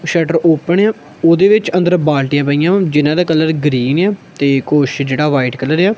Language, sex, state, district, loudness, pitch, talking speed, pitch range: Punjabi, male, Punjab, Kapurthala, -13 LUFS, 160 Hz, 210 wpm, 145-180 Hz